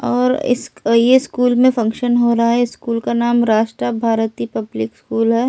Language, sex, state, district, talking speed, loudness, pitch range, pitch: Hindi, female, Delhi, New Delhi, 185 wpm, -16 LUFS, 225-245 Hz, 235 Hz